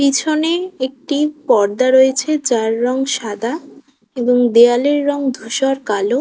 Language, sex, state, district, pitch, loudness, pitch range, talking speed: Bengali, female, West Bengal, Kolkata, 265 Hz, -16 LUFS, 240-285 Hz, 115 wpm